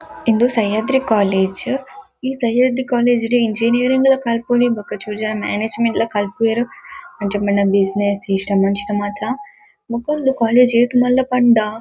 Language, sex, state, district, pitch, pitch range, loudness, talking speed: Tulu, female, Karnataka, Dakshina Kannada, 235 Hz, 210-255 Hz, -17 LUFS, 130 wpm